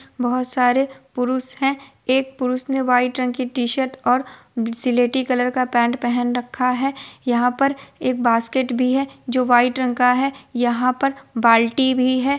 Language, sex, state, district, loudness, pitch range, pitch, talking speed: Hindi, female, Bihar, Supaul, -20 LUFS, 245-265 Hz, 255 Hz, 170 wpm